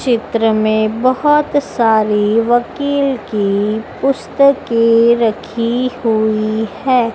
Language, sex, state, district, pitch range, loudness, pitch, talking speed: Hindi, female, Madhya Pradesh, Dhar, 220-255 Hz, -14 LUFS, 230 Hz, 85 wpm